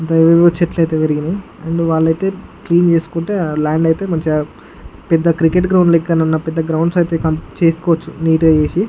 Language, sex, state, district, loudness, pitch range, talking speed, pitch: Telugu, male, Andhra Pradesh, Guntur, -15 LUFS, 160-170 Hz, 160 wpm, 165 Hz